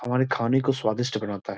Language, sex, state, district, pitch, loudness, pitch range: Hindi, male, Bihar, Jamui, 120 Hz, -25 LUFS, 110-130 Hz